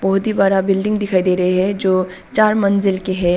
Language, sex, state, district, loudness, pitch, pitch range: Hindi, female, Arunachal Pradesh, Papum Pare, -16 LUFS, 195 Hz, 185-200 Hz